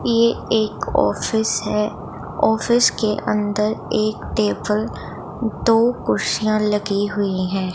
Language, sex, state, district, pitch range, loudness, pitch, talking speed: Hindi, female, Punjab, Pathankot, 200-225 Hz, -20 LUFS, 210 Hz, 110 wpm